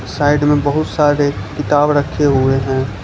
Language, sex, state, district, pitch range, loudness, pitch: Hindi, male, Gujarat, Valsad, 130-145 Hz, -15 LUFS, 145 Hz